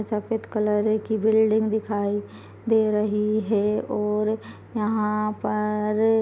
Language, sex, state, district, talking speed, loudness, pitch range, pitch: Hindi, female, Chhattisgarh, Balrampur, 105 wpm, -24 LUFS, 210-220 Hz, 215 Hz